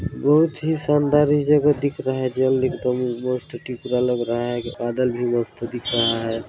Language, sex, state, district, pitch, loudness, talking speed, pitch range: Chhattisgarhi, male, Chhattisgarh, Balrampur, 125 Hz, -21 LUFS, 215 wpm, 120-145 Hz